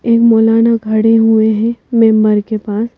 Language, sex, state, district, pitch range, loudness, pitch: Hindi, female, Madhya Pradesh, Bhopal, 220-230 Hz, -11 LUFS, 225 Hz